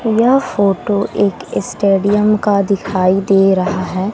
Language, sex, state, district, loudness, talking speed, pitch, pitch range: Hindi, female, Bihar, West Champaran, -14 LUFS, 130 wpm, 200 Hz, 195-205 Hz